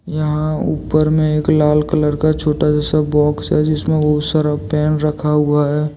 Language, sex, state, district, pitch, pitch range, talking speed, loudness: Hindi, male, Jharkhand, Deoghar, 150 Hz, 150-155 Hz, 180 wpm, -16 LUFS